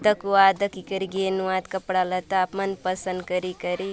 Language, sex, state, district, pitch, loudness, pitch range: Halbi, female, Chhattisgarh, Bastar, 190 Hz, -24 LUFS, 185-195 Hz